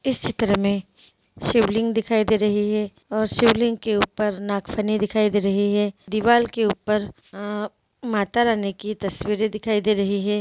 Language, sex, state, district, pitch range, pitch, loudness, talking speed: Hindi, female, Bihar, Gopalganj, 205-220 Hz, 210 Hz, -22 LUFS, 165 wpm